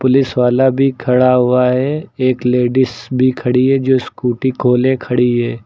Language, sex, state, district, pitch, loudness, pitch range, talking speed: Hindi, male, Uttar Pradesh, Lucknow, 125 Hz, -14 LUFS, 125-130 Hz, 180 wpm